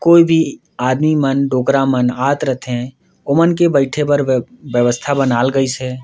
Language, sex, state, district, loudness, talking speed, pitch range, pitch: Surgujia, male, Chhattisgarh, Sarguja, -15 LUFS, 160 wpm, 125-145 Hz, 135 Hz